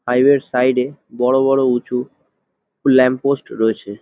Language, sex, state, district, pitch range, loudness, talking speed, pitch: Bengali, male, West Bengal, Jalpaiguri, 125-135 Hz, -17 LUFS, 135 wpm, 125 Hz